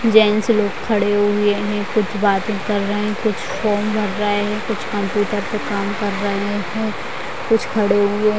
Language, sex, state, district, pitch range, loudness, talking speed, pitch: Hindi, female, Bihar, Vaishali, 205-215 Hz, -19 LUFS, 185 wpm, 205 Hz